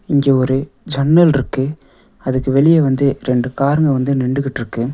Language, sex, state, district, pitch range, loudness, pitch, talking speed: Tamil, male, Tamil Nadu, Nilgiris, 130-140 Hz, -15 LUFS, 135 Hz, 120 wpm